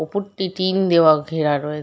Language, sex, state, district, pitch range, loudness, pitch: Bengali, female, West Bengal, Dakshin Dinajpur, 150-190 Hz, -18 LUFS, 165 Hz